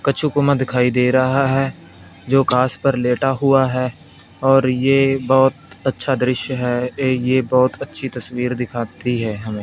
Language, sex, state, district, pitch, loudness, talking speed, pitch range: Hindi, male, Punjab, Fazilka, 130 Hz, -18 LUFS, 160 wpm, 125-135 Hz